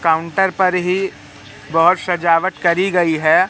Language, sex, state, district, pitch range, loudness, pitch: Hindi, male, Madhya Pradesh, Katni, 160-185 Hz, -16 LUFS, 170 Hz